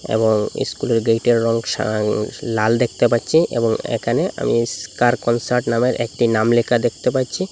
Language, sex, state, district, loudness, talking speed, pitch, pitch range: Bengali, male, Assam, Hailakandi, -18 LUFS, 150 wpm, 115 Hz, 110-120 Hz